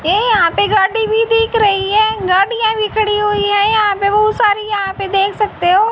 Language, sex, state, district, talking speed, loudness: Hindi, female, Haryana, Jhajjar, 215 wpm, -14 LUFS